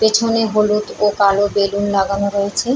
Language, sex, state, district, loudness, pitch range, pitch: Bengali, female, West Bengal, Paschim Medinipur, -16 LUFS, 200-215 Hz, 205 Hz